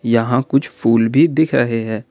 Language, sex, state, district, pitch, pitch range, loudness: Hindi, male, Jharkhand, Ranchi, 120 Hz, 115-135 Hz, -16 LUFS